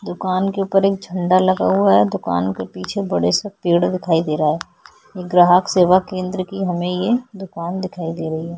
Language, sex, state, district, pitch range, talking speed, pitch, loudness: Hindi, female, Chhattisgarh, Korba, 170-190 Hz, 205 wpm, 180 Hz, -18 LUFS